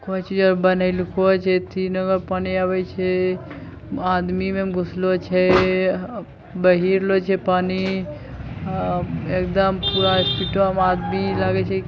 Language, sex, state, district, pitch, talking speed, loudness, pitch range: Maithili, male, Bihar, Bhagalpur, 185 Hz, 140 wpm, -20 LUFS, 180-190 Hz